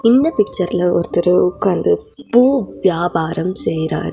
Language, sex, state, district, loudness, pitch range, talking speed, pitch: Tamil, female, Tamil Nadu, Nilgiris, -16 LUFS, 175-255 Hz, 100 wpm, 180 Hz